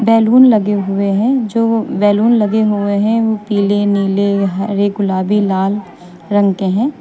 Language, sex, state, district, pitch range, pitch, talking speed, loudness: Hindi, female, Uttar Pradesh, Lucknow, 200-220 Hz, 205 Hz, 155 wpm, -14 LUFS